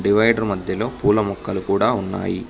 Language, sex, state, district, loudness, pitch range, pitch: Telugu, male, Telangana, Hyderabad, -20 LUFS, 100-110 Hz, 105 Hz